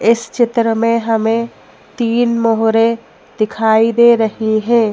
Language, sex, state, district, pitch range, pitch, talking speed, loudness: Hindi, female, Madhya Pradesh, Bhopal, 225-235 Hz, 230 Hz, 95 wpm, -14 LUFS